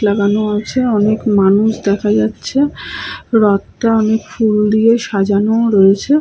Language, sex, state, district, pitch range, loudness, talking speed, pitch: Bengali, female, West Bengal, Paschim Medinipur, 205-225 Hz, -14 LUFS, 115 wpm, 215 Hz